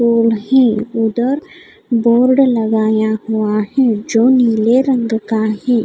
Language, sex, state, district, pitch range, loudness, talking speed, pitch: Hindi, female, Odisha, Khordha, 220-255 Hz, -14 LUFS, 105 wpm, 230 Hz